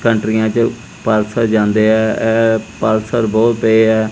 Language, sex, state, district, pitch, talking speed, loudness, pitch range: Punjabi, male, Punjab, Kapurthala, 110 Hz, 145 wpm, -14 LUFS, 110-115 Hz